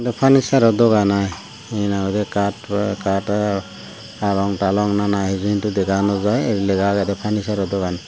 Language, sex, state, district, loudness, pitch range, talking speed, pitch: Chakma, male, Tripura, Unakoti, -19 LUFS, 100-105 Hz, 140 wpm, 100 Hz